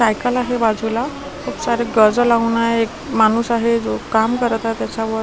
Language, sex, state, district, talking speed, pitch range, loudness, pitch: Marathi, female, Maharashtra, Washim, 185 wpm, 225-240 Hz, -18 LUFS, 230 Hz